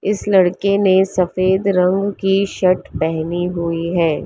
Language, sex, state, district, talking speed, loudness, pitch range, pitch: Hindi, female, Maharashtra, Mumbai Suburban, 140 wpm, -17 LUFS, 175-195 Hz, 185 Hz